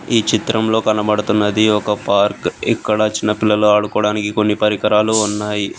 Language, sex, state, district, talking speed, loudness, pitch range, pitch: Telugu, male, Telangana, Hyderabad, 125 wpm, -16 LUFS, 105-110 Hz, 105 Hz